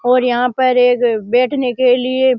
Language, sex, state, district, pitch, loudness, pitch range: Rajasthani, male, Rajasthan, Nagaur, 250 Hz, -14 LUFS, 245-255 Hz